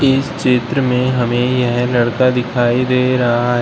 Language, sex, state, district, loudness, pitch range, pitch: Hindi, male, Uttar Pradesh, Shamli, -15 LUFS, 120-130 Hz, 125 Hz